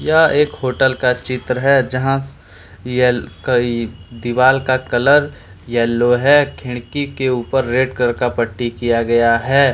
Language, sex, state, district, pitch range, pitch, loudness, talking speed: Hindi, male, Jharkhand, Deoghar, 120-135 Hz, 125 Hz, -16 LUFS, 135 wpm